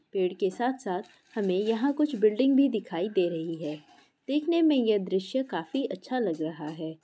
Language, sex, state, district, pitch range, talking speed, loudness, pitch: Hindi, female, Uttar Pradesh, Muzaffarnagar, 175-260 Hz, 180 wpm, -28 LUFS, 205 Hz